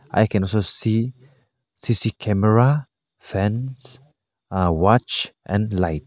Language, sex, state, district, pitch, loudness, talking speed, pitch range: English, male, Arunachal Pradesh, Lower Dibang Valley, 110 Hz, -21 LUFS, 110 wpm, 100-130 Hz